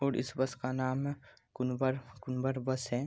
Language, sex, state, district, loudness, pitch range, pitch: Hindi, male, Bihar, Araria, -35 LUFS, 125-135 Hz, 130 Hz